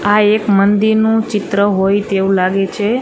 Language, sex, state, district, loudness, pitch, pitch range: Gujarati, female, Gujarat, Gandhinagar, -13 LUFS, 205 Hz, 195-215 Hz